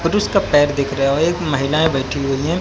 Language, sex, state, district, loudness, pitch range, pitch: Hindi, male, Haryana, Jhajjar, -17 LUFS, 140-165 Hz, 145 Hz